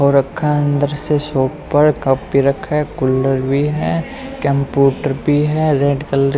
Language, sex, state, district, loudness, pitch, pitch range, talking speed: Hindi, male, Haryana, Rohtak, -16 LUFS, 140 Hz, 135-150 Hz, 190 wpm